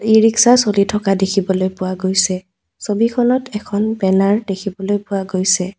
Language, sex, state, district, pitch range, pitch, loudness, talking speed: Assamese, female, Assam, Kamrup Metropolitan, 190-215 Hz, 200 Hz, -16 LUFS, 145 wpm